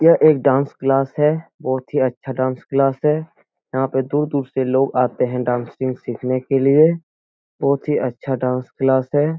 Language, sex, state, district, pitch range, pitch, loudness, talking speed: Hindi, male, Bihar, Jahanabad, 130-145 Hz, 135 Hz, -19 LUFS, 180 wpm